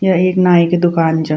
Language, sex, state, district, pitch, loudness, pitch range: Garhwali, female, Uttarakhand, Tehri Garhwal, 175 Hz, -13 LUFS, 165-185 Hz